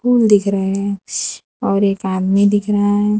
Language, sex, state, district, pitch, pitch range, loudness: Hindi, female, Gujarat, Valsad, 200 Hz, 195-205 Hz, -16 LUFS